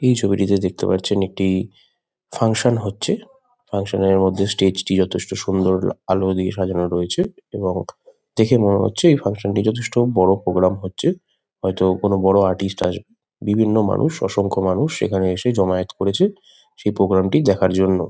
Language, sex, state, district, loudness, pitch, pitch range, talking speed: Bengali, male, West Bengal, Kolkata, -19 LUFS, 100 Hz, 95-115 Hz, 160 wpm